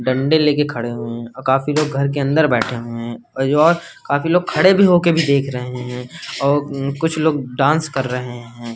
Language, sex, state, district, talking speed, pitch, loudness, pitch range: Hindi, male, Uttar Pradesh, Hamirpur, 225 wpm, 140 Hz, -17 LUFS, 125-155 Hz